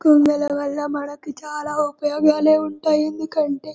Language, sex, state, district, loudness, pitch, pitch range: Telugu, male, Telangana, Karimnagar, -20 LUFS, 300 Hz, 290-305 Hz